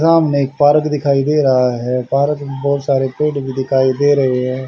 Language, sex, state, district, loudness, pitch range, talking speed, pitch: Hindi, male, Haryana, Charkhi Dadri, -15 LUFS, 130-145 Hz, 215 wpm, 140 Hz